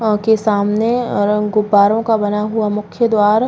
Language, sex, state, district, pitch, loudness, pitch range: Hindi, female, Uttar Pradesh, Jalaun, 210 Hz, -15 LUFS, 210-220 Hz